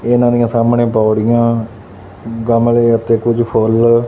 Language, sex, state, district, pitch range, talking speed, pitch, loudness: Punjabi, male, Punjab, Fazilka, 110-120 Hz, 120 wpm, 115 Hz, -13 LUFS